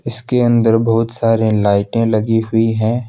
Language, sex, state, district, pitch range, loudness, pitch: Hindi, male, Jharkhand, Deoghar, 110-115 Hz, -14 LUFS, 115 Hz